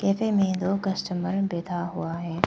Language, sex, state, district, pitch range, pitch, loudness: Hindi, female, Arunachal Pradesh, Papum Pare, 175-195 Hz, 185 Hz, -27 LUFS